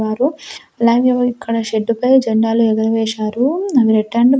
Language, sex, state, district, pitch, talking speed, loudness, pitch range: Telugu, female, Andhra Pradesh, Sri Satya Sai, 235 Hz, 135 wpm, -15 LUFS, 220-255 Hz